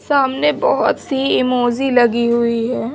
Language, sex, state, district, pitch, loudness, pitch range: Hindi, female, West Bengal, Jalpaiguri, 255 Hz, -16 LUFS, 235-270 Hz